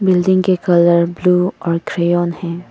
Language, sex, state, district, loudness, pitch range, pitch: Hindi, female, Arunachal Pradesh, Papum Pare, -15 LUFS, 170-180 Hz, 175 Hz